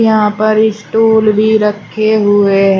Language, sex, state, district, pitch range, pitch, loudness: Hindi, female, Uttar Pradesh, Shamli, 205-220 Hz, 215 Hz, -11 LUFS